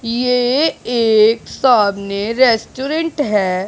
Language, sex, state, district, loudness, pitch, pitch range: Hindi, male, Punjab, Pathankot, -15 LUFS, 235 Hz, 215-260 Hz